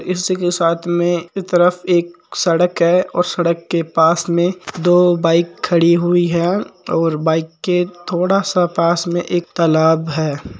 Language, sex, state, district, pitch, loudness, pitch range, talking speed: Marwari, male, Rajasthan, Nagaur, 175 Hz, -16 LUFS, 165-180 Hz, 160 wpm